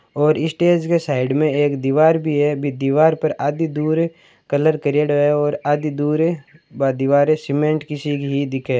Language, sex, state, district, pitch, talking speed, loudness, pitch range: Marwari, male, Rajasthan, Churu, 150 Hz, 190 wpm, -18 LUFS, 140-155 Hz